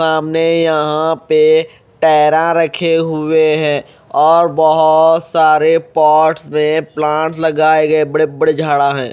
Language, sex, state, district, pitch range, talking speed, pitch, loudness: Hindi, male, Odisha, Malkangiri, 155-160 Hz, 125 wpm, 155 Hz, -12 LUFS